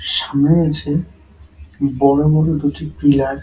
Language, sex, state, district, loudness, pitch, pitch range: Bengali, male, West Bengal, Dakshin Dinajpur, -16 LUFS, 145 Hz, 135-155 Hz